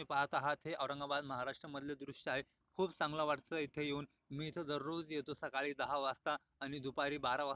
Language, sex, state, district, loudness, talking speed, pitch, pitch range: Marathi, male, Maharashtra, Aurangabad, -41 LUFS, 180 wpm, 145 Hz, 140-155 Hz